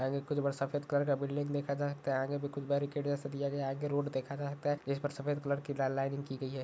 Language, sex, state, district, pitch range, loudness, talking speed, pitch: Hindi, male, Maharashtra, Nagpur, 140-145 Hz, -36 LUFS, 305 wpm, 140 Hz